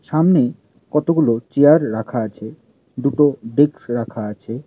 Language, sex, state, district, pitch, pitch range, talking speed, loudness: Bengali, male, West Bengal, Alipurduar, 120 Hz, 115-145 Hz, 115 wpm, -18 LUFS